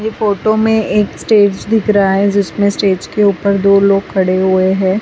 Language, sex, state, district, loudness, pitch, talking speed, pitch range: Hindi, female, Bihar, West Champaran, -12 LUFS, 200 Hz, 205 wpm, 195-210 Hz